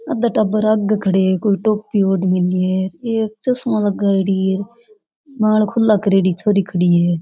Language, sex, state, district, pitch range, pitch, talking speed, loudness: Rajasthani, female, Rajasthan, Churu, 190-215 Hz, 205 Hz, 165 wpm, -17 LUFS